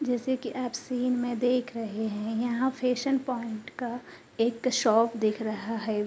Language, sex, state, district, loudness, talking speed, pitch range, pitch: Hindi, female, Uttar Pradesh, Hamirpur, -29 LUFS, 170 wpm, 225-250 Hz, 240 Hz